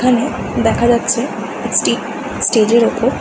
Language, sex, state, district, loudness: Bengali, female, West Bengal, Kolkata, -15 LUFS